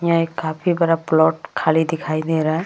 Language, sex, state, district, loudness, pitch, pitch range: Hindi, female, Bihar, Vaishali, -19 LUFS, 160 Hz, 160-165 Hz